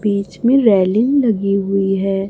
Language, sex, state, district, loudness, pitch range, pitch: Hindi, female, Chhattisgarh, Raipur, -15 LUFS, 195-225 Hz, 200 Hz